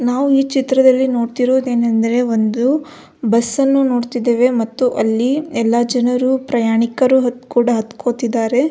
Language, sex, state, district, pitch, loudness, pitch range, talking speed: Kannada, female, Karnataka, Belgaum, 245 Hz, -16 LUFS, 235-260 Hz, 105 wpm